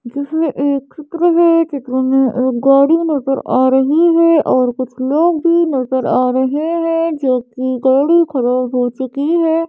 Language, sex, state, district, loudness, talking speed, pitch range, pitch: Hindi, female, Madhya Pradesh, Bhopal, -14 LUFS, 165 wpm, 260-330 Hz, 275 Hz